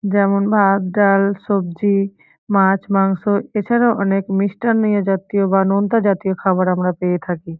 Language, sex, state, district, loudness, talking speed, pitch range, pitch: Bengali, female, West Bengal, Paschim Medinipur, -17 LUFS, 135 wpm, 190-205 Hz, 195 Hz